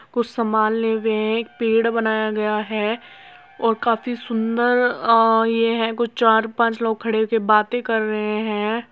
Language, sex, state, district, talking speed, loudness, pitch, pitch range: Hindi, female, Uttar Pradesh, Muzaffarnagar, 180 wpm, -20 LUFS, 225 Hz, 220-230 Hz